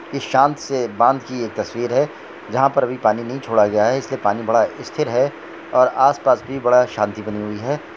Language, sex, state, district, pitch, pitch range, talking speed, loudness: Hindi, male, Jharkhand, Jamtara, 120 Hz, 105-130 Hz, 225 wpm, -19 LUFS